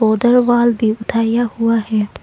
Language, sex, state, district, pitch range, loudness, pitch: Hindi, female, Arunachal Pradesh, Longding, 220-240 Hz, -15 LUFS, 230 Hz